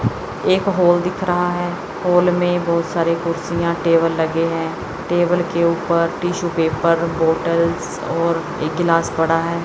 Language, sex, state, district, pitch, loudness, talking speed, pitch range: Hindi, male, Chandigarh, Chandigarh, 170 Hz, -18 LUFS, 150 wpm, 165-175 Hz